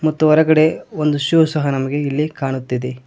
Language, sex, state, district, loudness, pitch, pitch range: Kannada, male, Karnataka, Koppal, -17 LUFS, 150 Hz, 135-155 Hz